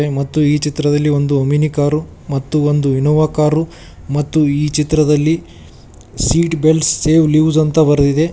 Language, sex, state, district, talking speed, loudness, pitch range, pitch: Kannada, male, Karnataka, Koppal, 145 wpm, -14 LUFS, 145-155 Hz, 150 Hz